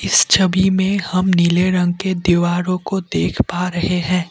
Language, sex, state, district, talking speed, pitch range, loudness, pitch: Hindi, male, Assam, Kamrup Metropolitan, 180 wpm, 175-190 Hz, -17 LUFS, 180 Hz